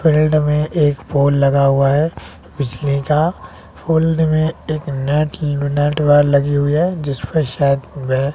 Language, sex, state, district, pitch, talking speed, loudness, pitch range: Hindi, male, Bihar, West Champaran, 145 Hz, 150 wpm, -16 LUFS, 140-155 Hz